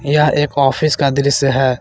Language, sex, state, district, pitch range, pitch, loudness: Hindi, male, Jharkhand, Garhwa, 135-145 Hz, 140 Hz, -14 LUFS